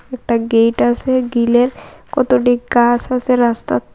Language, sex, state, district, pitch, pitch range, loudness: Bengali, female, Tripura, West Tripura, 240 Hz, 235-255 Hz, -15 LUFS